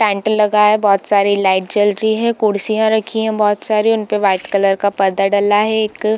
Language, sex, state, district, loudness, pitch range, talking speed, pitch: Hindi, female, Bihar, Darbhanga, -15 LUFS, 200-220 Hz, 225 wpm, 210 Hz